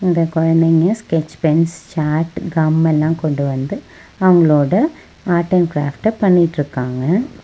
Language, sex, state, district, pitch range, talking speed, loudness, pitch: Tamil, female, Tamil Nadu, Nilgiris, 155-180 Hz, 115 wpm, -16 LUFS, 165 Hz